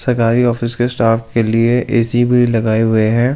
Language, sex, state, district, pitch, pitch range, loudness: Hindi, male, Delhi, New Delhi, 115 Hz, 115-120 Hz, -14 LUFS